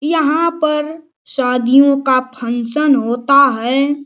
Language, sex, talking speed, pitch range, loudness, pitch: Hindi, male, 105 wpm, 255-300 Hz, -14 LUFS, 275 Hz